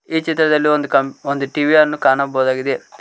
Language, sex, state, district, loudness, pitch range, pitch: Kannada, male, Karnataka, Koppal, -16 LUFS, 135-150 Hz, 145 Hz